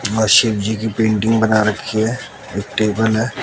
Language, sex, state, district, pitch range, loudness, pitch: Hindi, male, Bihar, West Champaran, 105-110 Hz, -16 LUFS, 110 Hz